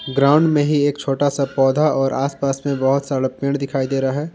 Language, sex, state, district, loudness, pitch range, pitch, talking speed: Hindi, male, Jharkhand, Ranchi, -18 LUFS, 135-145 Hz, 140 Hz, 250 wpm